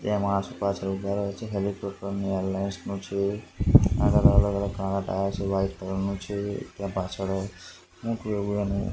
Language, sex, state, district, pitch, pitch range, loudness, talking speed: Gujarati, male, Gujarat, Gandhinagar, 100 Hz, 95-100 Hz, -27 LUFS, 140 wpm